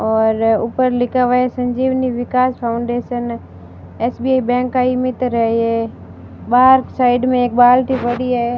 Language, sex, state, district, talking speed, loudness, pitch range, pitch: Hindi, female, Rajasthan, Barmer, 140 wpm, -16 LUFS, 235-255 Hz, 245 Hz